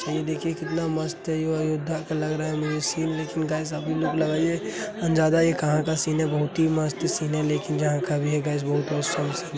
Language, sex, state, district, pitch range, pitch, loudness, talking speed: Hindi, male, Uttar Pradesh, Hamirpur, 150-160 Hz, 155 Hz, -25 LUFS, 255 wpm